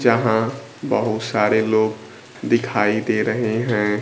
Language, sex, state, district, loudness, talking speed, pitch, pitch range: Hindi, female, Bihar, Kaimur, -20 LUFS, 120 wpm, 110 Hz, 110-120 Hz